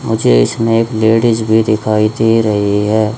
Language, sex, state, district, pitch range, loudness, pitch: Hindi, male, Haryana, Rohtak, 105-115 Hz, -12 LUFS, 110 Hz